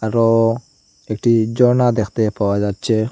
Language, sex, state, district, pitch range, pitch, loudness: Bengali, male, Assam, Hailakandi, 110-115 Hz, 110 Hz, -17 LUFS